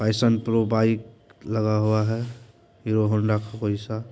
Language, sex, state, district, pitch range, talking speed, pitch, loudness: Hindi, male, Bihar, Purnia, 110-115 Hz, 130 wpm, 110 Hz, -24 LUFS